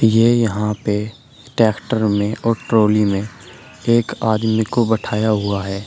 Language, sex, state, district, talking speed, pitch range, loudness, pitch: Hindi, male, Uttar Pradesh, Shamli, 145 wpm, 105-115 Hz, -18 LUFS, 110 Hz